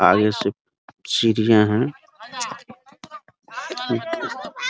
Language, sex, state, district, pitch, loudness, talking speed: Hindi, male, Bihar, Muzaffarpur, 145 Hz, -21 LUFS, 75 wpm